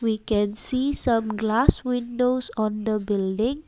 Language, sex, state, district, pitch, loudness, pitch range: English, female, Assam, Kamrup Metropolitan, 225 Hz, -24 LUFS, 215-250 Hz